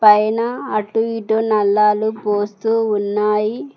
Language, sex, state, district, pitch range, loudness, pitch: Telugu, female, Telangana, Mahabubabad, 210-225 Hz, -17 LUFS, 215 Hz